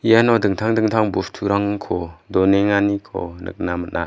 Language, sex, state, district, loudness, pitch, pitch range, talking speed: Garo, male, Meghalaya, West Garo Hills, -19 LUFS, 100 Hz, 95-110 Hz, 105 wpm